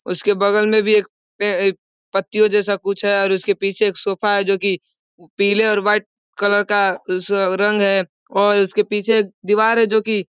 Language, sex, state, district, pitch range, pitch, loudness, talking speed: Hindi, male, Uttar Pradesh, Ghazipur, 195-210 Hz, 200 Hz, -17 LUFS, 180 wpm